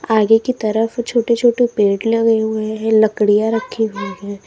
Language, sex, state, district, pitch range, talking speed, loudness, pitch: Hindi, female, Uttar Pradesh, Lalitpur, 215-230 Hz, 175 wpm, -16 LUFS, 220 Hz